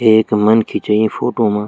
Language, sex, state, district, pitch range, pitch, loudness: Garhwali, male, Uttarakhand, Tehri Garhwal, 105-110 Hz, 110 Hz, -14 LUFS